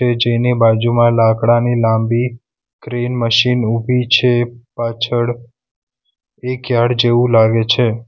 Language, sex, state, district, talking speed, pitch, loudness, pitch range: Gujarati, male, Gujarat, Valsad, 105 wpm, 120 Hz, -14 LUFS, 115-125 Hz